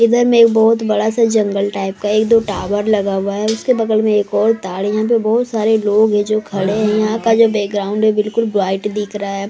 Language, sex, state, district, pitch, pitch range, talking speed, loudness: Hindi, female, Maharashtra, Mumbai Suburban, 215 Hz, 205-225 Hz, 245 wpm, -15 LUFS